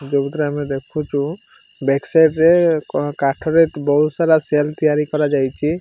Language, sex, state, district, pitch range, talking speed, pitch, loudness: Odia, male, Odisha, Malkangiri, 145-160 Hz, 145 wpm, 150 Hz, -17 LUFS